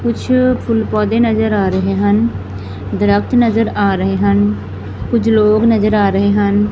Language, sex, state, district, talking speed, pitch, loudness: Punjabi, female, Punjab, Fazilka, 160 wpm, 205 Hz, -14 LUFS